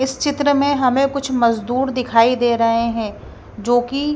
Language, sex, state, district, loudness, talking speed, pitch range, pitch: Hindi, female, Bihar, Patna, -17 LUFS, 175 wpm, 235-275 Hz, 255 Hz